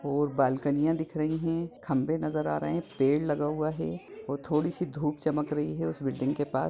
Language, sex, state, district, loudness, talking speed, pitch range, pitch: Hindi, male, Bihar, Jahanabad, -30 LUFS, 235 wpm, 135-155 Hz, 150 Hz